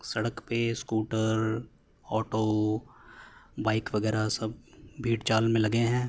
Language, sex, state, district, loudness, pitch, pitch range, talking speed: Hindi, male, Uttar Pradesh, Hamirpur, -29 LUFS, 110 Hz, 110-115 Hz, 120 wpm